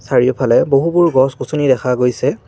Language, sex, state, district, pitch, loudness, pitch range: Assamese, male, Assam, Kamrup Metropolitan, 135 Hz, -14 LUFS, 125-150 Hz